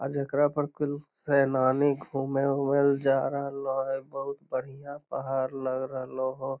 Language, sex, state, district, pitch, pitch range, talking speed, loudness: Magahi, male, Bihar, Lakhisarai, 135 Hz, 135-140 Hz, 155 wpm, -28 LUFS